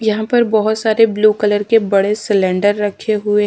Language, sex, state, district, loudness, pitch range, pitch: Hindi, female, Madhya Pradesh, Dhar, -14 LUFS, 205-220 Hz, 210 Hz